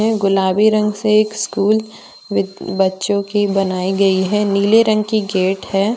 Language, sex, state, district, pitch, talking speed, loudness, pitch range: Hindi, female, Jharkhand, Deoghar, 200 Hz, 160 wpm, -16 LUFS, 195-215 Hz